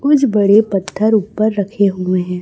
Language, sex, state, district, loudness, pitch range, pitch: Hindi, male, Chhattisgarh, Raipur, -14 LUFS, 190-215 Hz, 205 Hz